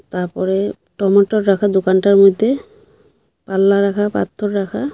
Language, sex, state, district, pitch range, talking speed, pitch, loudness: Bengali, female, Assam, Hailakandi, 195-215 Hz, 110 wpm, 200 Hz, -16 LUFS